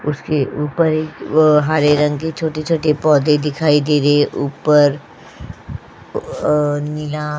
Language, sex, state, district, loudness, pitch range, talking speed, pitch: Hindi, female, Uttar Pradesh, Jyotiba Phule Nagar, -16 LUFS, 150-155 Hz, 145 wpm, 150 Hz